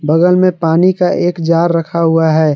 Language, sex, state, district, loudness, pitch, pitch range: Hindi, male, Jharkhand, Garhwa, -12 LUFS, 170 Hz, 160-180 Hz